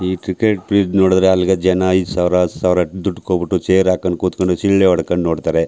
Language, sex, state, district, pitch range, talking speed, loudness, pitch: Kannada, male, Karnataka, Chamarajanagar, 90-95 Hz, 220 wpm, -16 LUFS, 95 Hz